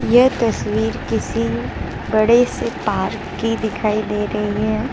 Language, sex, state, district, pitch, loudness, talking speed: Hindi, female, Gujarat, Valsad, 215 Hz, -19 LUFS, 135 wpm